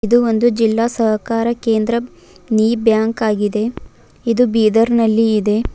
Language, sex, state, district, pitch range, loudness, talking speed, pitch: Kannada, female, Karnataka, Bidar, 220-235 Hz, -16 LUFS, 115 wpm, 225 Hz